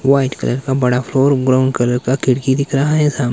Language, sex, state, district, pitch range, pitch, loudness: Hindi, male, Himachal Pradesh, Shimla, 125-140 Hz, 130 Hz, -15 LUFS